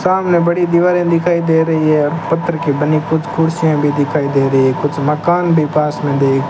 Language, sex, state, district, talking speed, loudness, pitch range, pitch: Hindi, male, Rajasthan, Bikaner, 220 wpm, -14 LUFS, 145-170 Hz, 155 Hz